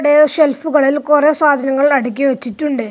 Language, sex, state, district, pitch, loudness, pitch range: Malayalam, male, Kerala, Kasaragod, 290 Hz, -13 LUFS, 270-300 Hz